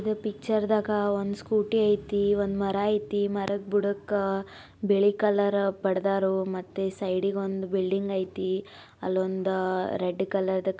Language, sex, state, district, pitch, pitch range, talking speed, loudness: Kannada, female, Karnataka, Belgaum, 200 Hz, 190-205 Hz, 120 wpm, -27 LUFS